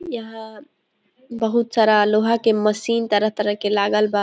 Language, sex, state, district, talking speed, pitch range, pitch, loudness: Hindi, female, Jharkhand, Sahebganj, 155 wpm, 210-230 Hz, 215 Hz, -19 LUFS